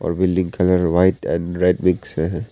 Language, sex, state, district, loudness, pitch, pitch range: Hindi, male, Arunachal Pradesh, Papum Pare, -19 LUFS, 90 Hz, 85-90 Hz